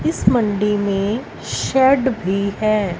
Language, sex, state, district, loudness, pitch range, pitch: Hindi, female, Punjab, Fazilka, -18 LUFS, 200-235 Hz, 210 Hz